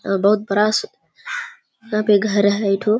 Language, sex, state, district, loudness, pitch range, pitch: Hindi, female, Bihar, Kishanganj, -19 LUFS, 200-215 Hz, 210 Hz